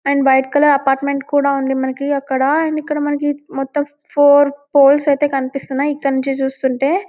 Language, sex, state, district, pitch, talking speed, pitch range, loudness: Telugu, female, Telangana, Karimnagar, 280 Hz, 160 wpm, 270-290 Hz, -16 LUFS